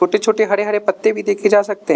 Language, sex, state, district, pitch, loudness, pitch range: Hindi, male, Arunachal Pradesh, Lower Dibang Valley, 205 Hz, -16 LUFS, 200-210 Hz